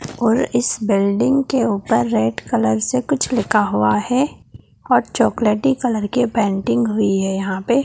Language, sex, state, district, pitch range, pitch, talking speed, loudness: Hindi, female, Bihar, Jahanabad, 200-250 Hz, 225 Hz, 170 wpm, -18 LUFS